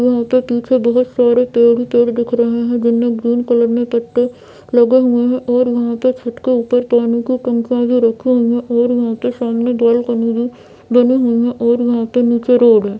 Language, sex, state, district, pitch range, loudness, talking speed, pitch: Hindi, female, Bihar, Jamui, 235-245 Hz, -14 LUFS, 215 wpm, 240 Hz